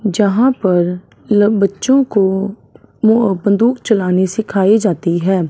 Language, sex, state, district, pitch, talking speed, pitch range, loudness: Hindi, male, Punjab, Fazilka, 200 Hz, 120 wpm, 190-220 Hz, -14 LUFS